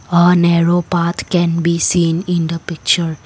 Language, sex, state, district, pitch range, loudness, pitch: English, female, Assam, Kamrup Metropolitan, 170-175 Hz, -15 LUFS, 170 Hz